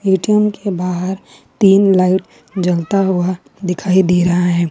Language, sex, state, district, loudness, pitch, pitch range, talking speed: Hindi, female, Jharkhand, Ranchi, -15 LUFS, 185 Hz, 180-195 Hz, 140 wpm